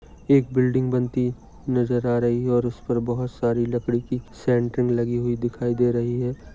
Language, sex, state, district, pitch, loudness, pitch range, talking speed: Hindi, male, Maharashtra, Dhule, 120 Hz, -23 LUFS, 120-125 Hz, 165 wpm